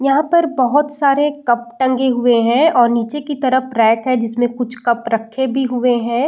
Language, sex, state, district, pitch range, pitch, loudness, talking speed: Hindi, female, Bihar, Saran, 235-275 Hz, 250 Hz, -16 LUFS, 200 wpm